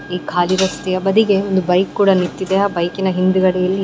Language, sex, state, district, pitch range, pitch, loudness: Kannada, female, Karnataka, Dakshina Kannada, 180-195 Hz, 185 Hz, -16 LUFS